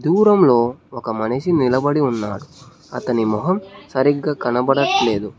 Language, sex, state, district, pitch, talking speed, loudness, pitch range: Telugu, male, Telangana, Hyderabad, 135 Hz, 100 wpm, -18 LUFS, 120-150 Hz